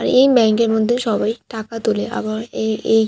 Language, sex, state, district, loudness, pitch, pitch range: Bengali, female, West Bengal, Purulia, -18 LUFS, 220 Hz, 220-230 Hz